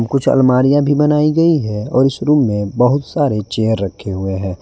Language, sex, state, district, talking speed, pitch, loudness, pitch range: Hindi, male, Jharkhand, Garhwa, 210 wpm, 125 Hz, -15 LUFS, 105-145 Hz